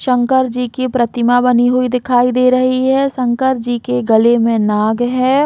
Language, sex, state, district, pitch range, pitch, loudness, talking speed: Hindi, female, Chhattisgarh, Raigarh, 240-255 Hz, 250 Hz, -14 LUFS, 185 wpm